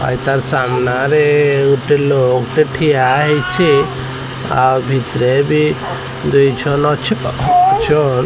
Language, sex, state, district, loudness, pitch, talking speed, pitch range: Odia, male, Odisha, Sambalpur, -14 LUFS, 140 Hz, 95 wpm, 130-150 Hz